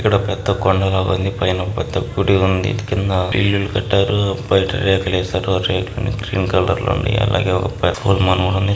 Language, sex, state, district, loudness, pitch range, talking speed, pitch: Telugu, male, Telangana, Nalgonda, -18 LUFS, 95-100 Hz, 145 wpm, 95 Hz